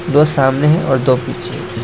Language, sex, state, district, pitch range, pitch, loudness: Hindi, male, Assam, Hailakandi, 130-150 Hz, 140 Hz, -14 LUFS